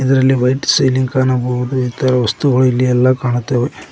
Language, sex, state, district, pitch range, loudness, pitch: Kannada, male, Karnataka, Koppal, 125-130 Hz, -14 LUFS, 130 Hz